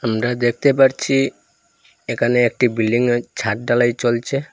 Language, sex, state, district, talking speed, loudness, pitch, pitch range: Bengali, male, Assam, Hailakandi, 130 wpm, -18 LUFS, 120 Hz, 115-125 Hz